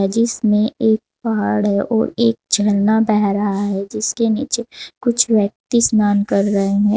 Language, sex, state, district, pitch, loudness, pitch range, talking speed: Hindi, female, Uttar Pradesh, Saharanpur, 215 Hz, -17 LUFS, 205-230 Hz, 155 wpm